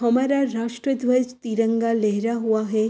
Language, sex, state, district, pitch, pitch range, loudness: Hindi, female, Uttar Pradesh, Hamirpur, 230 Hz, 225-250 Hz, -22 LUFS